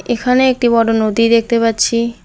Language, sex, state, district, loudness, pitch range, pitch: Bengali, female, West Bengal, Alipurduar, -13 LUFS, 230-240 Hz, 230 Hz